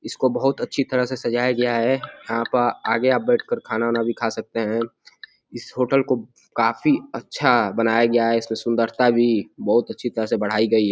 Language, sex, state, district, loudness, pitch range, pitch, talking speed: Hindi, male, Uttar Pradesh, Deoria, -21 LUFS, 115-125 Hz, 115 Hz, 200 wpm